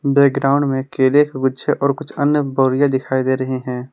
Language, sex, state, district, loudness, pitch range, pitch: Hindi, male, Jharkhand, Palamu, -17 LUFS, 130-140 Hz, 135 Hz